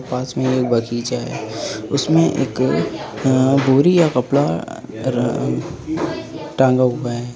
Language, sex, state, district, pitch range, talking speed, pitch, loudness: Hindi, female, Uttar Pradesh, Lucknow, 120-150 Hz, 120 wpm, 130 Hz, -18 LUFS